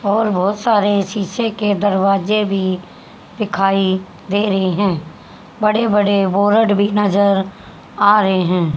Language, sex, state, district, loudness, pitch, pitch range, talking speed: Hindi, female, Haryana, Charkhi Dadri, -16 LUFS, 200 Hz, 190-210 Hz, 130 wpm